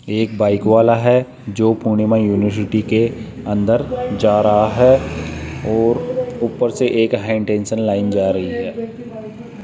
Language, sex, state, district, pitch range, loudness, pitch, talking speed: Hindi, male, Rajasthan, Jaipur, 105-125 Hz, -16 LUFS, 110 Hz, 130 wpm